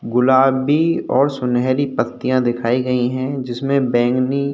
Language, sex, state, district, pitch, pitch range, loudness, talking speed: Hindi, male, Uttar Pradesh, Hamirpur, 130 Hz, 125-135 Hz, -17 LUFS, 130 wpm